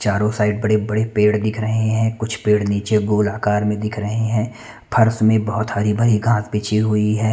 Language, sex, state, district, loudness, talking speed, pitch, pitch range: Hindi, male, Chandigarh, Chandigarh, -18 LUFS, 195 wpm, 105 Hz, 105-110 Hz